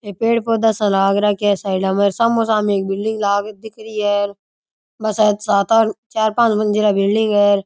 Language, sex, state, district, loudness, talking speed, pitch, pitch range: Rajasthani, male, Rajasthan, Churu, -17 LUFS, 195 wpm, 210 Hz, 200-220 Hz